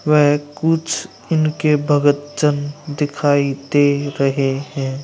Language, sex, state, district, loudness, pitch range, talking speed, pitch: Hindi, male, Bihar, Gaya, -18 LUFS, 140-150 Hz, 95 wpm, 145 Hz